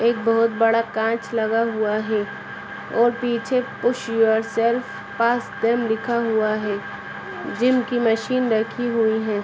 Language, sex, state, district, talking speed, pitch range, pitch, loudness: Hindi, female, Bihar, Saran, 115 wpm, 220-235 Hz, 230 Hz, -21 LUFS